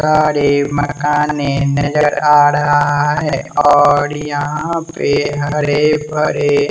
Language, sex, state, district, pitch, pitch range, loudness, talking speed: Hindi, male, Bihar, West Champaran, 145 Hz, 145-150 Hz, -14 LUFS, 100 wpm